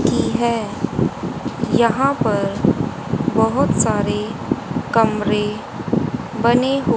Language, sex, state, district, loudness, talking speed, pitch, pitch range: Hindi, female, Haryana, Jhajjar, -19 LUFS, 75 wpm, 230 Hz, 215-245 Hz